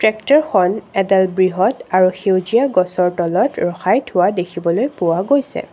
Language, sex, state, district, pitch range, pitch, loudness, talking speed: Assamese, female, Assam, Kamrup Metropolitan, 180-220 Hz, 185 Hz, -16 LUFS, 125 wpm